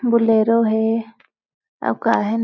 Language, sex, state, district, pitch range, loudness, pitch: Hindi, female, Chhattisgarh, Balrampur, 220-230 Hz, -18 LUFS, 225 Hz